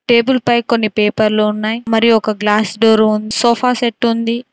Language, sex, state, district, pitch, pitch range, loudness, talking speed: Telugu, female, Telangana, Mahabubabad, 225 Hz, 215-235 Hz, -14 LUFS, 160 wpm